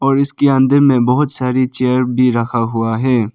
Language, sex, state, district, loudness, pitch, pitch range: Hindi, male, Arunachal Pradesh, Papum Pare, -14 LUFS, 130 Hz, 120-135 Hz